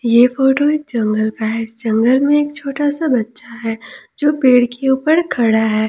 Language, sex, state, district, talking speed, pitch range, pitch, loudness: Hindi, female, Jharkhand, Palamu, 195 wpm, 225-290 Hz, 250 Hz, -15 LUFS